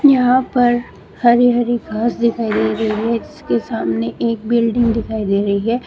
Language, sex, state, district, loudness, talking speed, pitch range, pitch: Hindi, female, Uttar Pradesh, Shamli, -17 LUFS, 175 wpm, 215-240 Hz, 230 Hz